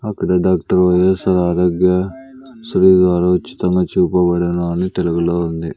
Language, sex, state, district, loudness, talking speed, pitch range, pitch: Telugu, male, Andhra Pradesh, Sri Satya Sai, -15 LUFS, 105 wpm, 85-95 Hz, 90 Hz